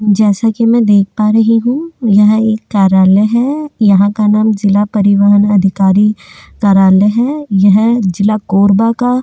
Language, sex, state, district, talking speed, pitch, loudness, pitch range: Hindi, female, Chhattisgarh, Korba, 150 wpm, 210 Hz, -10 LUFS, 200-225 Hz